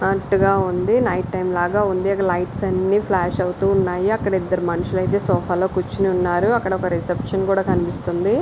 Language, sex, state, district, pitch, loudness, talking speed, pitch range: Telugu, female, Andhra Pradesh, Visakhapatnam, 185 Hz, -20 LUFS, 170 wpm, 180-195 Hz